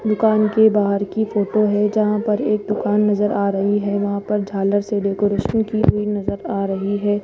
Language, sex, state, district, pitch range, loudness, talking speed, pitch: Hindi, female, Rajasthan, Jaipur, 200-215 Hz, -19 LUFS, 205 wpm, 205 Hz